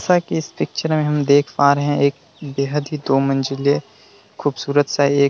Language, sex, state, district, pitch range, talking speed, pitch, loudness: Hindi, male, Bihar, Vaishali, 140-150 Hz, 215 wpm, 145 Hz, -19 LUFS